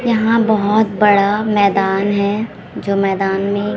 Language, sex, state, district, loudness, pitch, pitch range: Hindi, female, Chhattisgarh, Raipur, -15 LUFS, 205 Hz, 200-215 Hz